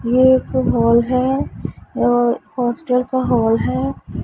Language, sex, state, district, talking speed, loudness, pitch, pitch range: Hindi, female, Punjab, Pathankot, 125 wpm, -17 LUFS, 245 Hz, 240-255 Hz